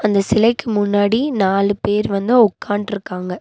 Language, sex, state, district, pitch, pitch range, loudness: Tamil, female, Tamil Nadu, Nilgiris, 205 Hz, 200-220 Hz, -17 LUFS